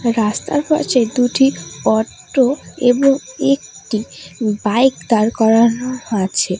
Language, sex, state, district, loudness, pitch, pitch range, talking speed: Bengali, female, West Bengal, Alipurduar, -16 LUFS, 225 Hz, 190-255 Hz, 90 wpm